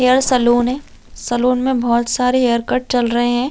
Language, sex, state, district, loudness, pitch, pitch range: Hindi, female, Chhattisgarh, Raigarh, -16 LUFS, 250 Hz, 240-255 Hz